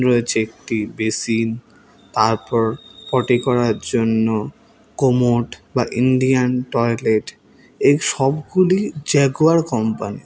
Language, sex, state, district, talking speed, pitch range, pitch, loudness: Bengali, male, West Bengal, Alipurduar, 100 wpm, 110-130 Hz, 120 Hz, -18 LUFS